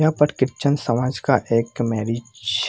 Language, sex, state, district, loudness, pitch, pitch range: Hindi, male, Bihar, Purnia, -21 LUFS, 120 Hz, 115-140 Hz